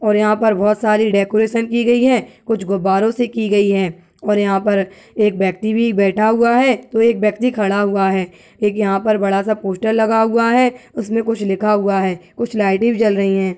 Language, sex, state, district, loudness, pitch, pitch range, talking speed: Hindi, female, Uttar Pradesh, Budaun, -16 LUFS, 210 Hz, 195-225 Hz, 220 wpm